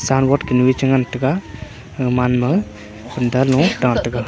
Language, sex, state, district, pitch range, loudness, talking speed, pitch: Wancho, male, Arunachal Pradesh, Longding, 120-135 Hz, -17 LUFS, 170 wpm, 125 Hz